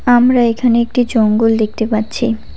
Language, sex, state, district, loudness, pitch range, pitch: Bengali, female, West Bengal, Cooch Behar, -14 LUFS, 220-245 Hz, 230 Hz